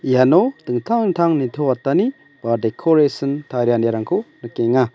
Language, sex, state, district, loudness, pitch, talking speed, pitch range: Garo, male, Meghalaya, West Garo Hills, -18 LUFS, 135 Hz, 95 wpm, 120-160 Hz